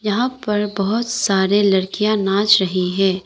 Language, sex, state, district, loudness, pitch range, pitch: Hindi, female, Arunachal Pradesh, Lower Dibang Valley, -17 LUFS, 195-215 Hz, 205 Hz